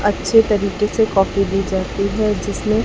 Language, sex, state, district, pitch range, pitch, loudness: Hindi, male, Chhattisgarh, Raipur, 195-215 Hz, 200 Hz, -18 LUFS